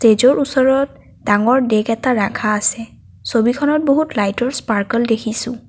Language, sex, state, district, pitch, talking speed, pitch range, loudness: Assamese, female, Assam, Kamrup Metropolitan, 235 Hz, 125 wpm, 220-265 Hz, -16 LUFS